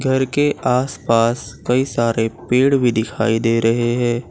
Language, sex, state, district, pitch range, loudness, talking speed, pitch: Hindi, male, Gujarat, Valsad, 115-130 Hz, -18 LUFS, 165 wpm, 120 Hz